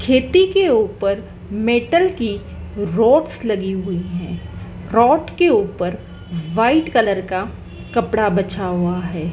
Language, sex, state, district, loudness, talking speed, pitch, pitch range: Hindi, female, Madhya Pradesh, Dhar, -18 LUFS, 120 wpm, 205 Hz, 180-240 Hz